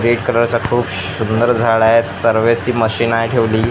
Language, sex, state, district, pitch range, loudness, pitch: Marathi, male, Maharashtra, Gondia, 110-120 Hz, -15 LUFS, 115 Hz